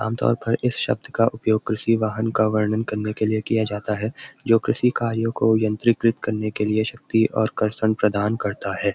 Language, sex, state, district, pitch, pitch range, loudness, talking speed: Hindi, male, Uttarakhand, Uttarkashi, 110 Hz, 105-115 Hz, -22 LUFS, 200 wpm